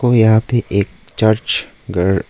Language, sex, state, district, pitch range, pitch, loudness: Hindi, male, Arunachal Pradesh, Lower Dibang Valley, 100-115 Hz, 110 Hz, -15 LUFS